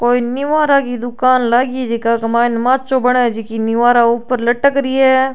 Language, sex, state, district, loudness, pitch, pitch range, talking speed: Rajasthani, female, Rajasthan, Churu, -14 LUFS, 245 Hz, 235-260 Hz, 180 wpm